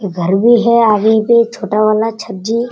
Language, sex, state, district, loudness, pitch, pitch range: Hindi, male, Bihar, Sitamarhi, -12 LUFS, 220 Hz, 210-235 Hz